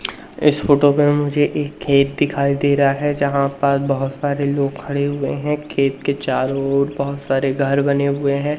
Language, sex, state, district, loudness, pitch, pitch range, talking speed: Hindi, male, Madhya Pradesh, Umaria, -18 LUFS, 140 Hz, 140-145 Hz, 195 wpm